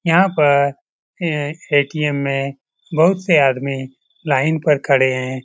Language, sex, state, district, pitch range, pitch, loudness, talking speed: Hindi, male, Bihar, Lakhisarai, 135-165 Hz, 145 Hz, -17 LUFS, 120 wpm